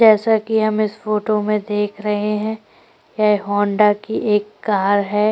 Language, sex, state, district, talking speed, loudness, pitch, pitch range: Hindi, female, Chhattisgarh, Korba, 170 wpm, -18 LUFS, 210 Hz, 210-215 Hz